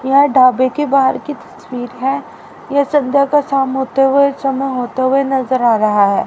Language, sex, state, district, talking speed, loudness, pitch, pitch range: Hindi, female, Haryana, Rohtak, 190 wpm, -14 LUFS, 270 Hz, 255-280 Hz